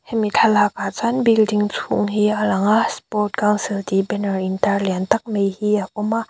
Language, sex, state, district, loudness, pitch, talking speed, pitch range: Mizo, female, Mizoram, Aizawl, -19 LUFS, 210 Hz, 210 wpm, 200-215 Hz